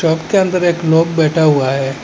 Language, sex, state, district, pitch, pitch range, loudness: Hindi, male, Assam, Hailakandi, 160 Hz, 150-170 Hz, -14 LUFS